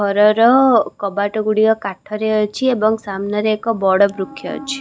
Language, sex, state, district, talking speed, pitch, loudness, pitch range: Odia, female, Odisha, Khordha, 125 wpm, 215 Hz, -16 LUFS, 200-225 Hz